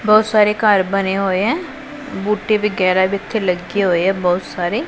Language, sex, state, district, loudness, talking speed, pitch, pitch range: Punjabi, female, Punjab, Pathankot, -17 LUFS, 185 wpm, 200 Hz, 190-215 Hz